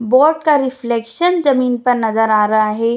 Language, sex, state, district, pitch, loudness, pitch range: Hindi, female, Bihar, Jamui, 245 Hz, -15 LUFS, 225-280 Hz